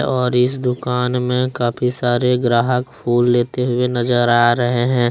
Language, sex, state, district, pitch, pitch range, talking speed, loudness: Hindi, male, Jharkhand, Deoghar, 125 Hz, 120-125 Hz, 165 wpm, -17 LUFS